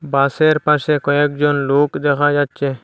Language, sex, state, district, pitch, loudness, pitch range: Bengali, male, Assam, Hailakandi, 145 Hz, -16 LUFS, 140-150 Hz